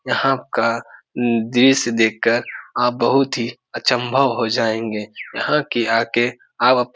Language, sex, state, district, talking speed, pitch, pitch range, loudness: Hindi, male, Bihar, Supaul, 145 wpm, 120 Hz, 115-125 Hz, -19 LUFS